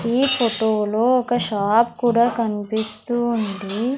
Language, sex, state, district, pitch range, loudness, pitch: Telugu, female, Andhra Pradesh, Sri Satya Sai, 215-240 Hz, -18 LUFS, 230 Hz